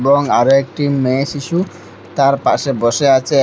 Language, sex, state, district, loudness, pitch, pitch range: Bengali, male, Assam, Hailakandi, -14 LUFS, 140 Hz, 130-145 Hz